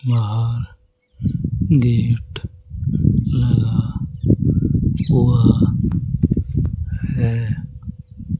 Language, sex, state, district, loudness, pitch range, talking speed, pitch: Hindi, male, Rajasthan, Jaipur, -19 LUFS, 95-120 Hz, 45 wpm, 115 Hz